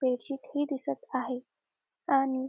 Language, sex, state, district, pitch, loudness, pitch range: Marathi, female, Maharashtra, Dhule, 270 Hz, -31 LUFS, 255-285 Hz